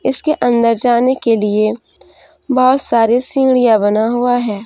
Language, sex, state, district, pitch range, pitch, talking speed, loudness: Hindi, female, Jharkhand, Deoghar, 225-260 Hz, 240 Hz, 140 wpm, -13 LUFS